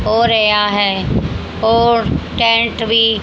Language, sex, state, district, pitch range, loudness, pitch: Hindi, female, Haryana, Jhajjar, 215-230 Hz, -14 LUFS, 225 Hz